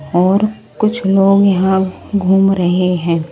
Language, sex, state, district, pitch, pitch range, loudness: Hindi, male, Delhi, New Delhi, 190 Hz, 180-195 Hz, -14 LUFS